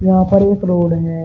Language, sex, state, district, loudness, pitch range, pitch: Hindi, male, Uttar Pradesh, Shamli, -14 LUFS, 165-195 Hz, 185 Hz